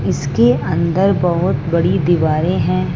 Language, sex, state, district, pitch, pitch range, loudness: Hindi, female, Punjab, Fazilka, 170 Hz, 155-180 Hz, -15 LUFS